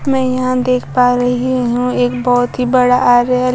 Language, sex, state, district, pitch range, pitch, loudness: Hindi, male, Bihar, Kaimur, 245-255 Hz, 250 Hz, -13 LUFS